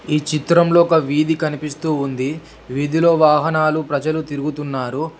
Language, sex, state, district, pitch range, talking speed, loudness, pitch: Telugu, male, Telangana, Hyderabad, 145-160 Hz, 115 wpm, -18 LUFS, 155 Hz